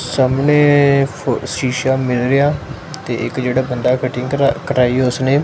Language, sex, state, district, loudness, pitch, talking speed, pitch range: Punjabi, male, Punjab, Kapurthala, -16 LUFS, 130 Hz, 130 wpm, 125-140 Hz